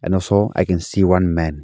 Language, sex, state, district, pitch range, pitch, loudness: English, male, Arunachal Pradesh, Lower Dibang Valley, 85-95 Hz, 90 Hz, -17 LUFS